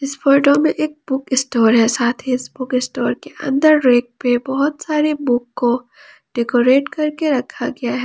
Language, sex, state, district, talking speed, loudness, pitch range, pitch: Hindi, female, Jharkhand, Palamu, 185 wpm, -17 LUFS, 245-290 Hz, 265 Hz